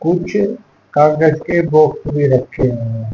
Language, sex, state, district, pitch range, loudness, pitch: Hindi, male, Haryana, Charkhi Dadri, 130-170 Hz, -15 LUFS, 155 Hz